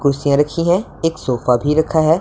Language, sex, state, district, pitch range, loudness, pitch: Hindi, male, Punjab, Pathankot, 140-165 Hz, -17 LUFS, 150 Hz